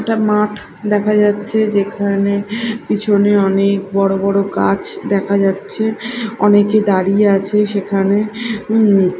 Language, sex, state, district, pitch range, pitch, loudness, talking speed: Bengali, female, Odisha, Khordha, 200-215 Hz, 205 Hz, -15 LUFS, 115 wpm